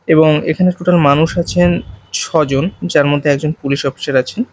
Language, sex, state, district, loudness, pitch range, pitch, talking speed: Bengali, male, Odisha, Malkangiri, -14 LUFS, 140-170 Hz, 155 Hz, 160 wpm